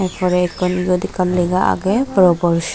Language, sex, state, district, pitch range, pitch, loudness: Chakma, female, Tripura, Dhalai, 180-185 Hz, 180 Hz, -16 LUFS